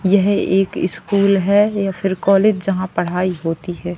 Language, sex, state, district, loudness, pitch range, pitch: Hindi, female, Madhya Pradesh, Katni, -17 LUFS, 180-200 Hz, 195 Hz